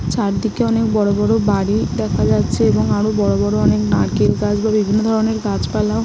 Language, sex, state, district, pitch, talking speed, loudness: Bengali, female, West Bengal, Malda, 205 Hz, 180 wpm, -17 LUFS